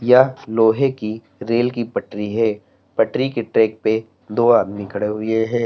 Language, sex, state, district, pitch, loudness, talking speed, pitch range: Hindi, male, Uttar Pradesh, Lalitpur, 110 Hz, -19 LUFS, 170 wpm, 110-120 Hz